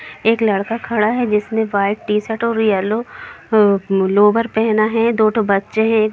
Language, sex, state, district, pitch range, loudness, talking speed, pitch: Hindi, female, Jharkhand, Jamtara, 205-225 Hz, -16 LUFS, 165 wpm, 215 Hz